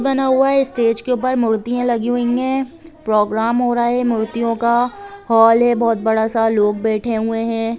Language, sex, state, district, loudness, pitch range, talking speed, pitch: Hindi, female, Bihar, Gopalganj, -17 LUFS, 225-245 Hz, 195 wpm, 235 Hz